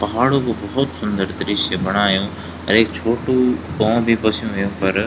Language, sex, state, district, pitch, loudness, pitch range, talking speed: Garhwali, male, Uttarakhand, Tehri Garhwal, 105 Hz, -18 LUFS, 95-115 Hz, 165 wpm